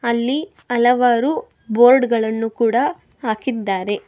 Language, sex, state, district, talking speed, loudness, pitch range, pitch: Kannada, female, Karnataka, Bangalore, 90 wpm, -18 LUFS, 225-245 Hz, 235 Hz